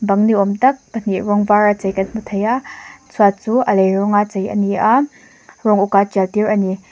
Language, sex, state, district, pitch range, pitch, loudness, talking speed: Mizo, female, Mizoram, Aizawl, 200-225 Hz, 205 Hz, -16 LUFS, 250 wpm